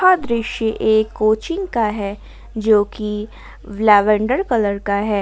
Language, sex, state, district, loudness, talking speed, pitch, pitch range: Hindi, female, Jharkhand, Ranchi, -18 LUFS, 140 wpm, 215 Hz, 205-230 Hz